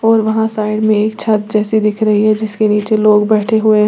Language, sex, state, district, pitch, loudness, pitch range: Hindi, female, Uttar Pradesh, Lalitpur, 215 Hz, -13 LUFS, 210-220 Hz